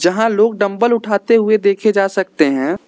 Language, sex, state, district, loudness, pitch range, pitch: Hindi, male, Arunachal Pradesh, Lower Dibang Valley, -15 LUFS, 195-220 Hz, 205 Hz